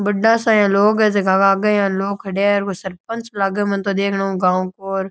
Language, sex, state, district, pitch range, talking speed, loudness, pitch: Rajasthani, male, Rajasthan, Nagaur, 195-205 Hz, 260 wpm, -17 LUFS, 200 Hz